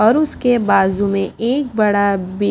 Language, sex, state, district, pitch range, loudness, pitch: Hindi, female, Haryana, Jhajjar, 200-240 Hz, -16 LUFS, 205 Hz